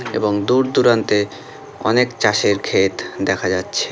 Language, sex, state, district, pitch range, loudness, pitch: Bengali, male, West Bengal, North 24 Parganas, 105-125 Hz, -18 LUFS, 110 Hz